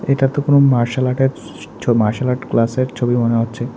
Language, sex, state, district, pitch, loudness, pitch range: Bengali, male, Tripura, West Tripura, 125 Hz, -16 LUFS, 120-135 Hz